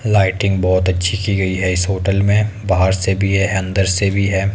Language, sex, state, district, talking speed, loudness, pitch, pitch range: Hindi, male, Himachal Pradesh, Shimla, 225 wpm, -16 LUFS, 95 Hz, 95-100 Hz